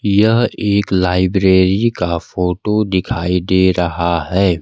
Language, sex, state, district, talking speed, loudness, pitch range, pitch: Hindi, male, Bihar, Kaimur, 115 wpm, -15 LUFS, 90-100 Hz, 95 Hz